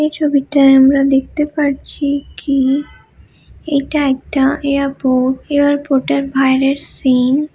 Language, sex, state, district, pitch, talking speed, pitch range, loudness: Bengali, female, West Bengal, Malda, 275 Hz, 105 wpm, 270-285 Hz, -14 LUFS